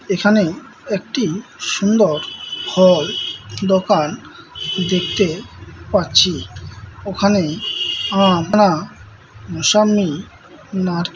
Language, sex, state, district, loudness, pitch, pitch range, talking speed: Bengali, male, West Bengal, Malda, -17 LUFS, 185 Hz, 155-200 Hz, 65 wpm